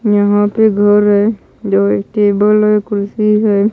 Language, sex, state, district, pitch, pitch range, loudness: Hindi, female, Odisha, Malkangiri, 205 Hz, 205-210 Hz, -12 LUFS